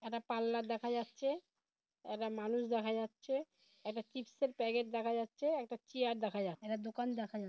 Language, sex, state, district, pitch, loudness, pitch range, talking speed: Bengali, female, West Bengal, Paschim Medinipur, 230 Hz, -40 LUFS, 220-245 Hz, 170 wpm